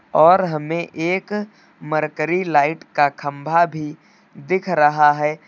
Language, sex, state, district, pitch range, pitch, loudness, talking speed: Hindi, male, Uttar Pradesh, Lucknow, 150-175 Hz, 155 Hz, -19 LUFS, 120 wpm